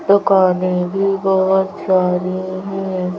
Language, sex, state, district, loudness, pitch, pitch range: Hindi, female, Madhya Pradesh, Bhopal, -16 LUFS, 190 Hz, 185-195 Hz